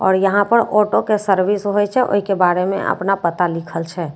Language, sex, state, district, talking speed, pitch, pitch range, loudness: Maithili, female, Bihar, Katihar, 230 wpm, 195 Hz, 175-205 Hz, -17 LUFS